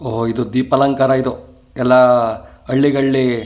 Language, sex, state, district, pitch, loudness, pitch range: Kannada, male, Karnataka, Chamarajanagar, 125 Hz, -15 LUFS, 115-135 Hz